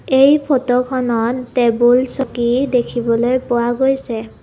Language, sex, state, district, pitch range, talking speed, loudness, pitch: Assamese, female, Assam, Kamrup Metropolitan, 240-265 Hz, 110 wpm, -16 LUFS, 245 Hz